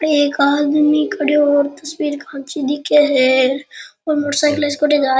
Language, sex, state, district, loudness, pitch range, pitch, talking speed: Rajasthani, male, Rajasthan, Churu, -16 LUFS, 280-300 Hz, 290 Hz, 90 wpm